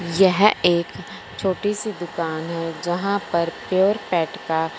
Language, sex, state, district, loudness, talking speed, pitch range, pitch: Hindi, male, Punjab, Fazilka, -21 LUFS, 135 wpm, 165-195 Hz, 175 Hz